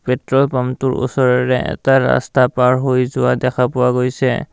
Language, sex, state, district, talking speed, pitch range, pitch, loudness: Assamese, male, Assam, Kamrup Metropolitan, 135 wpm, 125-130 Hz, 125 Hz, -16 LUFS